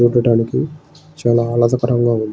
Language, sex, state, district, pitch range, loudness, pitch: Telugu, male, Andhra Pradesh, Srikakulam, 120-145 Hz, -16 LUFS, 120 Hz